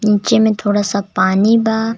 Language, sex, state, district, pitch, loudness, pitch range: Bhojpuri, male, Jharkhand, Palamu, 210 Hz, -14 LUFS, 200-220 Hz